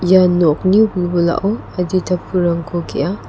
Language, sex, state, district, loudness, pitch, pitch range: Garo, female, Meghalaya, West Garo Hills, -16 LUFS, 180 Hz, 170-185 Hz